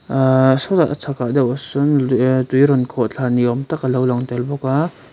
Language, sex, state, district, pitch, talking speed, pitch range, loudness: Mizo, male, Mizoram, Aizawl, 130 Hz, 200 wpm, 125-140 Hz, -17 LUFS